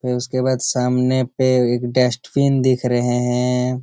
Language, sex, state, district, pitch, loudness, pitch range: Hindi, male, Bihar, Jamui, 125 Hz, -18 LUFS, 125-130 Hz